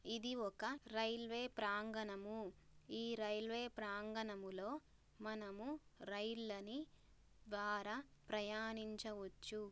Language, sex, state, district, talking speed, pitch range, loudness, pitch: Telugu, female, Telangana, Karimnagar, 70 wpm, 205-230 Hz, -47 LUFS, 215 Hz